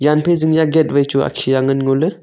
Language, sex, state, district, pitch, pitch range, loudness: Wancho, male, Arunachal Pradesh, Longding, 150 Hz, 135-160 Hz, -15 LUFS